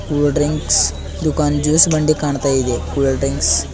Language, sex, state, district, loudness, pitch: Kannada, male, Karnataka, Bidar, -16 LUFS, 140 Hz